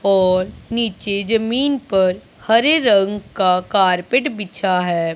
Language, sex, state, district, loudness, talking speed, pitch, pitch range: Hindi, male, Punjab, Pathankot, -17 LUFS, 115 wpm, 200 Hz, 185-230 Hz